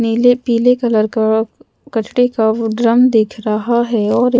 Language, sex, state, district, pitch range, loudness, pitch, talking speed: Hindi, female, Madhya Pradesh, Bhopal, 220-245 Hz, -14 LUFS, 230 Hz, 150 wpm